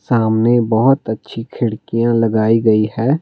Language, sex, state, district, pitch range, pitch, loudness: Hindi, male, Himachal Pradesh, Shimla, 110-120 Hz, 115 Hz, -15 LUFS